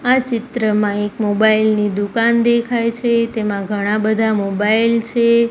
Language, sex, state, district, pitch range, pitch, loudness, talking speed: Gujarati, female, Gujarat, Gandhinagar, 210-235 Hz, 220 Hz, -16 LUFS, 140 wpm